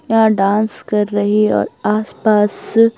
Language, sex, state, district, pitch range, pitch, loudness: Hindi, female, Bihar, Patna, 205-220 Hz, 215 Hz, -15 LUFS